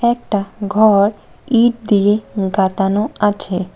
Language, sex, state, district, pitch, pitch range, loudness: Bengali, female, West Bengal, Cooch Behar, 205 Hz, 200-220 Hz, -16 LUFS